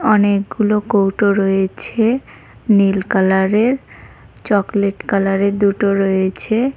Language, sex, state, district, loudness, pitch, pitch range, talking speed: Bengali, female, West Bengal, Cooch Behar, -16 LUFS, 200 Hz, 195-215 Hz, 80 wpm